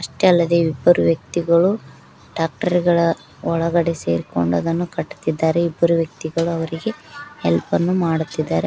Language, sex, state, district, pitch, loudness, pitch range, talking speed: Kannada, female, Karnataka, Koppal, 165 Hz, -19 LUFS, 160-175 Hz, 110 wpm